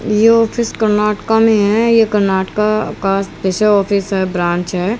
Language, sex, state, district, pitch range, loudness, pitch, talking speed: Hindi, female, Haryana, Rohtak, 190-220 Hz, -14 LUFS, 210 Hz, 155 wpm